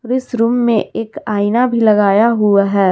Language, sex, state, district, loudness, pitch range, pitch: Hindi, female, Jharkhand, Garhwa, -14 LUFS, 205-240 Hz, 225 Hz